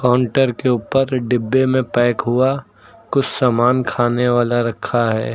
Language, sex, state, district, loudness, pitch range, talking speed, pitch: Hindi, male, Uttar Pradesh, Lucknow, -17 LUFS, 120-130 Hz, 145 wpm, 125 Hz